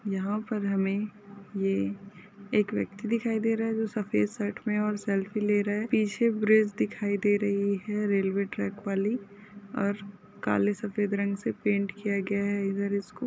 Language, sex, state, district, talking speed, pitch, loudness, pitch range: Hindi, female, Maharashtra, Solapur, 165 wpm, 205 Hz, -29 LUFS, 200-210 Hz